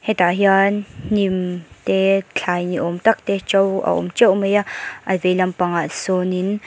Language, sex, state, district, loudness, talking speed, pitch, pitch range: Mizo, female, Mizoram, Aizawl, -19 LUFS, 160 wpm, 190 Hz, 180-200 Hz